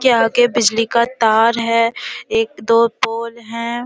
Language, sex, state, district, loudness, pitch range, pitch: Hindi, female, Bihar, Jamui, -16 LUFS, 230-240 Hz, 230 Hz